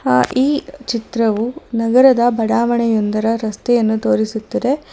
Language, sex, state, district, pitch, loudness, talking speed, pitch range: Kannada, female, Karnataka, Bangalore, 230 Hz, -16 LUFS, 95 wpm, 220-255 Hz